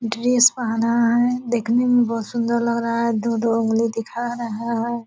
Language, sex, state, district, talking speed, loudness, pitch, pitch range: Hindi, female, Bihar, Purnia, 180 wpm, -20 LUFS, 235 Hz, 230-240 Hz